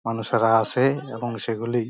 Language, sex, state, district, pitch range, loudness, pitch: Bengali, male, West Bengal, Jhargram, 115-120 Hz, -23 LUFS, 115 Hz